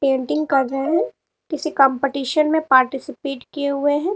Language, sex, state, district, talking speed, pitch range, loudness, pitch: Hindi, female, Uttar Pradesh, Lalitpur, 160 wpm, 270-305 Hz, -20 LUFS, 280 Hz